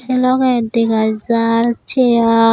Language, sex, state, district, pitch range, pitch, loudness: Chakma, female, Tripura, Dhalai, 230-250 Hz, 230 Hz, -14 LUFS